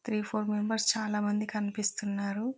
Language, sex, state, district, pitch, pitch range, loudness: Telugu, female, Telangana, Karimnagar, 210 Hz, 210-220 Hz, -31 LUFS